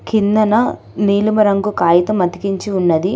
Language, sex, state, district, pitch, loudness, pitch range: Telugu, female, Telangana, Hyderabad, 200 Hz, -15 LUFS, 180-210 Hz